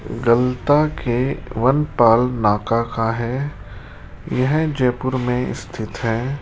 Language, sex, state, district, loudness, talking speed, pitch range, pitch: Hindi, male, Rajasthan, Jaipur, -19 LUFS, 105 wpm, 115-130 Hz, 125 Hz